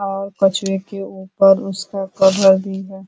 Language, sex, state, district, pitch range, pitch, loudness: Hindi, female, Uttar Pradesh, Ghazipur, 190-195 Hz, 195 Hz, -16 LUFS